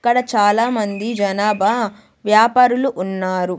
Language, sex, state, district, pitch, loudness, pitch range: Telugu, female, Andhra Pradesh, Sri Satya Sai, 215 Hz, -17 LUFS, 200-240 Hz